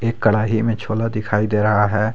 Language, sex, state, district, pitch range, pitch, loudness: Hindi, male, Jharkhand, Garhwa, 105-115 Hz, 110 Hz, -19 LUFS